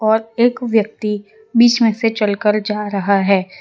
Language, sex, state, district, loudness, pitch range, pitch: Hindi, female, Gujarat, Valsad, -16 LUFS, 210-225 Hz, 215 Hz